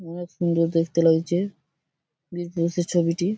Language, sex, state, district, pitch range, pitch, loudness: Bengali, male, West Bengal, Purulia, 165-175 Hz, 170 Hz, -23 LUFS